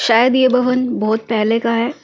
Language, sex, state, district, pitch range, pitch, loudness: Hindi, female, Delhi, New Delhi, 225-255 Hz, 230 Hz, -15 LUFS